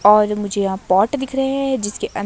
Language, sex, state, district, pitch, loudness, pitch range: Hindi, female, Himachal Pradesh, Shimla, 210 Hz, -18 LUFS, 205-265 Hz